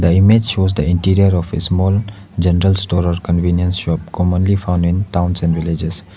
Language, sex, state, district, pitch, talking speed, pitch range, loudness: English, male, Arunachal Pradesh, Lower Dibang Valley, 90 Hz, 185 wpm, 85-95 Hz, -16 LUFS